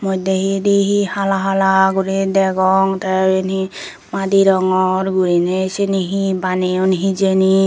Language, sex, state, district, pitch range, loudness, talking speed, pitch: Chakma, female, Tripura, Dhalai, 190-195 Hz, -16 LUFS, 135 wpm, 190 Hz